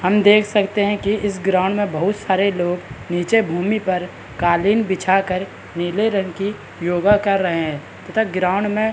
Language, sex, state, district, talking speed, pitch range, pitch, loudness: Hindi, male, Bihar, Madhepura, 190 wpm, 180-205 Hz, 195 Hz, -19 LUFS